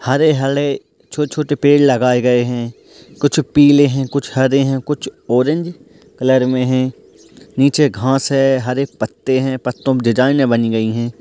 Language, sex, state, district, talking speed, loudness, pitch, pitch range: Hindi, male, Bihar, Purnia, 155 wpm, -15 LUFS, 135 Hz, 125-145 Hz